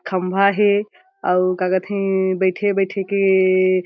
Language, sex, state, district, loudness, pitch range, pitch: Chhattisgarhi, female, Chhattisgarh, Jashpur, -18 LUFS, 185-200 Hz, 190 Hz